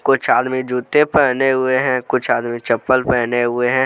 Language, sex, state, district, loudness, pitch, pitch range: Hindi, male, Jharkhand, Deoghar, -16 LUFS, 130 Hz, 120-130 Hz